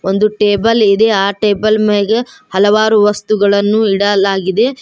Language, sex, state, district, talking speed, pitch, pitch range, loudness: Kannada, female, Karnataka, Koppal, 110 wpm, 210 Hz, 200-215 Hz, -12 LUFS